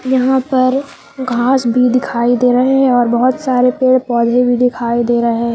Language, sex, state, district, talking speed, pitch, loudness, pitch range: Hindi, female, Jharkhand, Palamu, 195 wpm, 250 Hz, -13 LUFS, 240-260 Hz